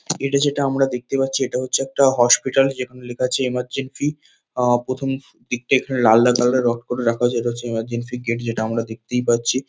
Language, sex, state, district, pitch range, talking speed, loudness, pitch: Bengali, male, West Bengal, North 24 Parganas, 120-135 Hz, 200 wpm, -20 LUFS, 125 Hz